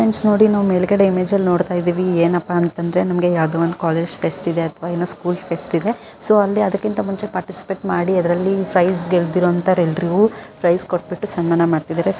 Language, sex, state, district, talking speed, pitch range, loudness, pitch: Kannada, female, Karnataka, Gulbarga, 165 wpm, 170-195 Hz, -17 LUFS, 180 Hz